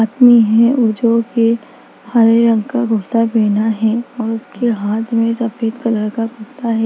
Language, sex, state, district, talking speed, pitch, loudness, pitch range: Hindi, female, Bihar, Darbhanga, 165 wpm, 230 Hz, -15 LUFS, 220-235 Hz